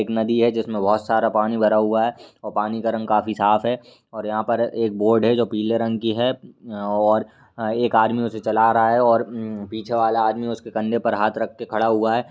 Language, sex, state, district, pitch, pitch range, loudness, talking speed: Hindi, male, Bihar, Lakhisarai, 110 Hz, 110-115 Hz, -21 LUFS, 245 wpm